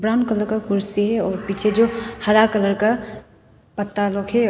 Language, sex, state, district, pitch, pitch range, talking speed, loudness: Hindi, female, Arunachal Pradesh, Papum Pare, 210 Hz, 200-220 Hz, 175 wpm, -20 LUFS